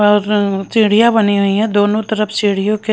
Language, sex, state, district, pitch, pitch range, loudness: Hindi, female, Himachal Pradesh, Shimla, 210 Hz, 205-215 Hz, -14 LUFS